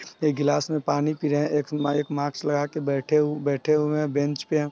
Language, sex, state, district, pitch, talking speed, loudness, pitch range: Hindi, male, Bihar, Sitamarhi, 145 Hz, 205 wpm, -25 LUFS, 145-150 Hz